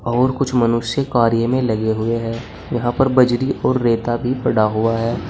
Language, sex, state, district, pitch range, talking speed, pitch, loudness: Hindi, male, Uttar Pradesh, Saharanpur, 115-125 Hz, 190 wpm, 120 Hz, -18 LUFS